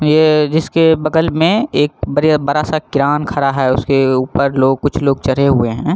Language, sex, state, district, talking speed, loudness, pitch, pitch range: Hindi, male, Jharkhand, Jamtara, 190 wpm, -14 LUFS, 145 Hz, 135-155 Hz